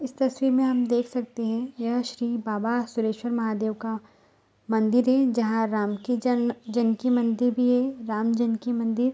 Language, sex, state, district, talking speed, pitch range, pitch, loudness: Hindi, female, Bihar, Saharsa, 165 wpm, 225-245 Hz, 240 Hz, -25 LUFS